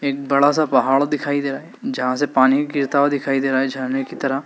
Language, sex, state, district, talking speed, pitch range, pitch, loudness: Hindi, male, Madhya Pradesh, Dhar, 270 wpm, 135-145 Hz, 140 Hz, -19 LUFS